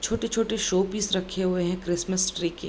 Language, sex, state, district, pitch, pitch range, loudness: Hindi, female, Bihar, Darbhanga, 185 Hz, 180-210 Hz, -26 LUFS